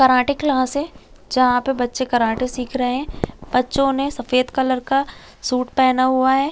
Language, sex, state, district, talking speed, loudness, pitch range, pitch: Hindi, female, Chhattisgarh, Raigarh, 175 wpm, -19 LUFS, 250-270 Hz, 260 Hz